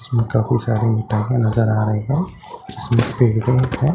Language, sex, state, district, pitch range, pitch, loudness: Hindi, male, Bihar, Katihar, 110-125 Hz, 115 Hz, -18 LUFS